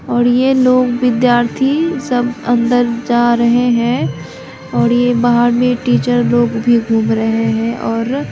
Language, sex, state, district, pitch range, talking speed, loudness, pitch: Hindi, female, Bihar, Begusarai, 235-245 Hz, 145 wpm, -14 LUFS, 240 Hz